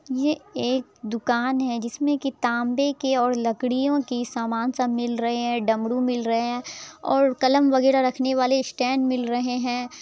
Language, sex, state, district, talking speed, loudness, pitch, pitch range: Hindi, male, Bihar, Araria, 180 wpm, -23 LUFS, 250 Hz, 240-265 Hz